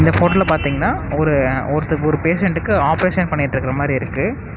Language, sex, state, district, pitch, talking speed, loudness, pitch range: Tamil, male, Tamil Nadu, Namakkal, 150 Hz, 130 wpm, -17 LUFS, 140-165 Hz